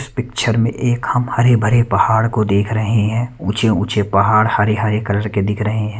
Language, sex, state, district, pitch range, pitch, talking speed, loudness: Hindi, male, Punjab, Kapurthala, 105-120 Hz, 110 Hz, 190 wpm, -16 LUFS